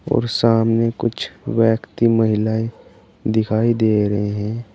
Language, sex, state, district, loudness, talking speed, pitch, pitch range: Hindi, male, Uttar Pradesh, Saharanpur, -19 LUFS, 115 wpm, 110 Hz, 110-115 Hz